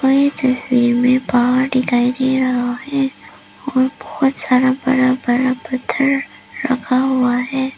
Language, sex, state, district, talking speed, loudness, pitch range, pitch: Hindi, female, Arunachal Pradesh, Lower Dibang Valley, 140 wpm, -17 LUFS, 250-265 Hz, 255 Hz